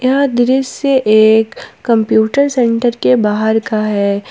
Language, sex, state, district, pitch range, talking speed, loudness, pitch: Hindi, female, Jharkhand, Palamu, 215-255 Hz, 125 wpm, -12 LUFS, 230 Hz